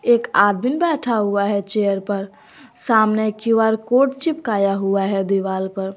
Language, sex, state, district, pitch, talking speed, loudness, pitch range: Hindi, female, Jharkhand, Garhwa, 210 Hz, 160 wpm, -19 LUFS, 195-230 Hz